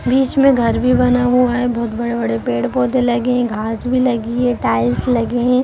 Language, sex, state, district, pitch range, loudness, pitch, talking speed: Hindi, female, Chhattisgarh, Kabirdham, 230-250 Hz, -16 LUFS, 245 Hz, 210 wpm